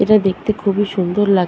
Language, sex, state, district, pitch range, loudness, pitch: Bengali, female, West Bengal, Purulia, 190-205 Hz, -17 LUFS, 200 Hz